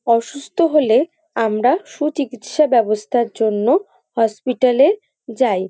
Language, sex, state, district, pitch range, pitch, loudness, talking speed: Bengali, female, West Bengal, North 24 Parganas, 225-300 Hz, 250 Hz, -17 LUFS, 95 wpm